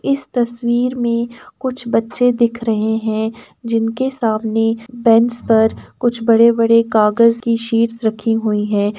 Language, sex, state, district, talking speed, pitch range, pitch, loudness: Hindi, female, Uttar Pradesh, Etah, 140 wpm, 225-235 Hz, 230 Hz, -16 LUFS